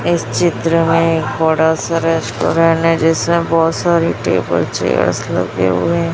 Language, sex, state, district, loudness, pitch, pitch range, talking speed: Hindi, female, Chhattisgarh, Raipur, -15 LUFS, 165 Hz, 160-165 Hz, 145 wpm